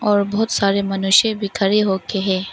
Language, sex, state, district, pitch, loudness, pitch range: Hindi, female, Arunachal Pradesh, Longding, 200 Hz, -18 LUFS, 195-210 Hz